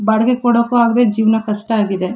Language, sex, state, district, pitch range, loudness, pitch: Kannada, female, Karnataka, Shimoga, 210-235 Hz, -14 LUFS, 220 Hz